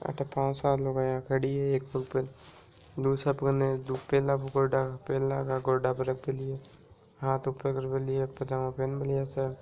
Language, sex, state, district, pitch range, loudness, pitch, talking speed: Marwari, male, Rajasthan, Nagaur, 130-135 Hz, -30 LUFS, 135 Hz, 195 wpm